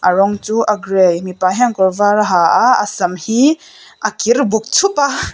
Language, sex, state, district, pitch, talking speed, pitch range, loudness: Mizo, female, Mizoram, Aizawl, 215 Hz, 225 wpm, 190-250 Hz, -14 LUFS